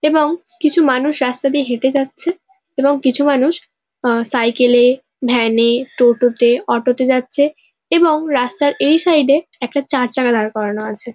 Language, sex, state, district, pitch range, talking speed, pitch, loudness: Bengali, female, West Bengal, North 24 Parganas, 245-300 Hz, 155 wpm, 265 Hz, -15 LUFS